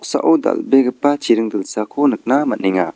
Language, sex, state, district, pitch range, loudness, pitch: Garo, male, Meghalaya, West Garo Hills, 95-135 Hz, -16 LUFS, 110 Hz